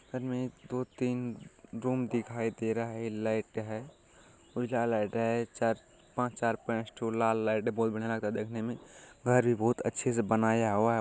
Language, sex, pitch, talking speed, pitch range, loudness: Maithili, male, 115 Hz, 185 wpm, 110-125 Hz, -32 LUFS